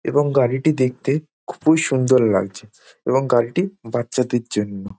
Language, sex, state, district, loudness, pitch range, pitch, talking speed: Bengali, male, West Bengal, Dakshin Dinajpur, -19 LUFS, 115-145 Hz, 130 Hz, 145 wpm